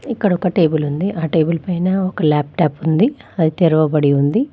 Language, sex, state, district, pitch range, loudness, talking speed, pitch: Telugu, female, Telangana, Mahabubabad, 155-190 Hz, -17 LUFS, 170 wpm, 165 Hz